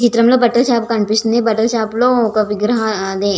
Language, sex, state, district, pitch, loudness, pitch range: Telugu, female, Andhra Pradesh, Visakhapatnam, 225 Hz, -14 LUFS, 215-240 Hz